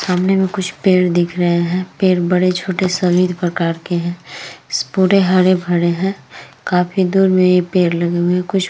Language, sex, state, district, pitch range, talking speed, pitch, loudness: Hindi, female, Uttar Pradesh, Etah, 175-185 Hz, 185 wpm, 180 Hz, -15 LUFS